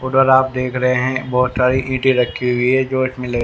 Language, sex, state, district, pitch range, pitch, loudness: Hindi, male, Haryana, Rohtak, 125-130 Hz, 130 Hz, -16 LUFS